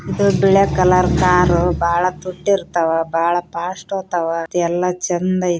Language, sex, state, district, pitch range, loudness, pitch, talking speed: Kannada, female, Karnataka, Raichur, 170-185 Hz, -17 LUFS, 180 Hz, 170 wpm